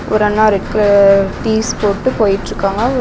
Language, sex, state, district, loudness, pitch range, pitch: Tamil, female, Tamil Nadu, Namakkal, -13 LUFS, 200-220 Hz, 210 Hz